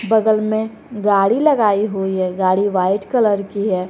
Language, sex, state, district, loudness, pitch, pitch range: Hindi, female, Jharkhand, Garhwa, -17 LUFS, 205 Hz, 190-220 Hz